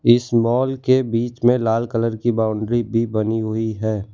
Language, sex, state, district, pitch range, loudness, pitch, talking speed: Hindi, male, Gujarat, Valsad, 110-120 Hz, -19 LUFS, 115 Hz, 190 wpm